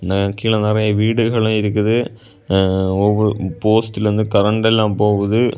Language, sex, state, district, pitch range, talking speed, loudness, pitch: Tamil, male, Tamil Nadu, Kanyakumari, 100-110 Hz, 105 wpm, -16 LUFS, 105 Hz